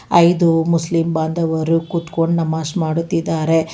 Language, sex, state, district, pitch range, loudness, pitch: Kannada, female, Karnataka, Bangalore, 160-170 Hz, -17 LUFS, 165 Hz